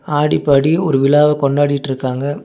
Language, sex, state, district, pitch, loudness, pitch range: Tamil, male, Tamil Nadu, Nilgiris, 145 Hz, -14 LUFS, 140-150 Hz